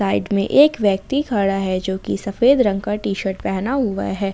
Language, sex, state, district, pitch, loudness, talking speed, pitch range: Hindi, female, Jharkhand, Ranchi, 200 Hz, -19 LUFS, 205 wpm, 195-240 Hz